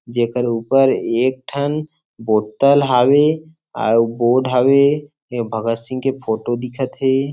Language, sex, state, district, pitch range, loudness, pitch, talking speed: Chhattisgarhi, male, Chhattisgarh, Sarguja, 115-140 Hz, -17 LUFS, 130 Hz, 140 wpm